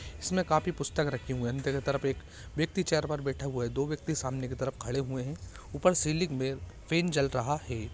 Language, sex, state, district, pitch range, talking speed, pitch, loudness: Hindi, male, Andhra Pradesh, Chittoor, 130-155 Hz, 225 wpm, 140 Hz, -32 LUFS